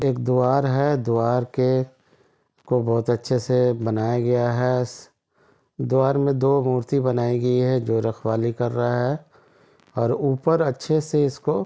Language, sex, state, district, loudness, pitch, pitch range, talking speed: Hindi, male, Chhattisgarh, Bilaspur, -22 LUFS, 125 Hz, 120-135 Hz, 155 wpm